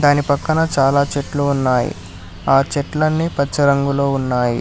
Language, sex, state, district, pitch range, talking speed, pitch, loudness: Telugu, male, Telangana, Hyderabad, 130-145 Hz, 130 wpm, 140 Hz, -17 LUFS